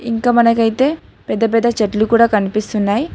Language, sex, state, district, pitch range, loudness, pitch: Telugu, female, Telangana, Hyderabad, 215-235 Hz, -15 LUFS, 230 Hz